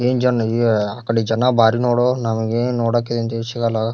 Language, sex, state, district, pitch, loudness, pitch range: Kannada, male, Karnataka, Bijapur, 115 Hz, -18 LUFS, 115-120 Hz